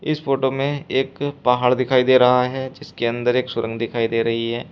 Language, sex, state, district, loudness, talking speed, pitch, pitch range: Hindi, male, Uttar Pradesh, Shamli, -20 LUFS, 215 wpm, 125 Hz, 120-135 Hz